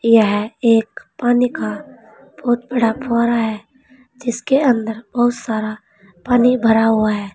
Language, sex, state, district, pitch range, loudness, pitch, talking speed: Hindi, female, Uttar Pradesh, Saharanpur, 220-245 Hz, -17 LUFS, 235 Hz, 130 wpm